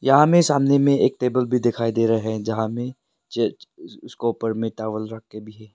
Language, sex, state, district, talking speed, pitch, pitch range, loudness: Hindi, male, Arunachal Pradesh, Lower Dibang Valley, 210 wpm, 115 Hz, 110-135 Hz, -21 LUFS